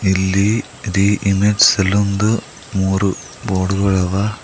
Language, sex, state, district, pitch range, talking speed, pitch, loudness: Kannada, male, Karnataka, Bidar, 95-105 Hz, 110 wpm, 100 Hz, -16 LUFS